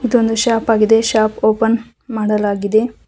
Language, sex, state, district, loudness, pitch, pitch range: Kannada, female, Karnataka, Koppal, -15 LUFS, 225 Hz, 215-230 Hz